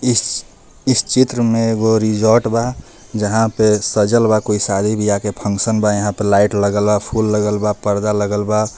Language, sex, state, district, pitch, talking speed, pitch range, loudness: Bhojpuri, male, Jharkhand, Palamu, 105 Hz, 190 wpm, 105-110 Hz, -16 LUFS